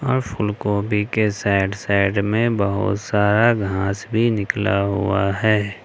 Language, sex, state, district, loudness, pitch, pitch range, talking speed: Hindi, male, Jharkhand, Ranchi, -20 LUFS, 105 Hz, 100-110 Hz, 135 wpm